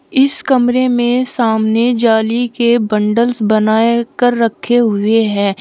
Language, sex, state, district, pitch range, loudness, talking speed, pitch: Hindi, female, Uttar Pradesh, Shamli, 220-245 Hz, -13 LUFS, 130 wpm, 235 Hz